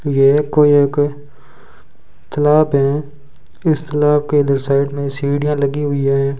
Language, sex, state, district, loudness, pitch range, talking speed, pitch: Hindi, male, Rajasthan, Bikaner, -15 LUFS, 140-150 Hz, 140 wpm, 145 Hz